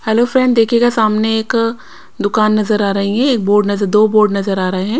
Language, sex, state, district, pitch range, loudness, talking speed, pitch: Hindi, female, Punjab, Kapurthala, 205-230 Hz, -14 LUFS, 230 wpm, 215 Hz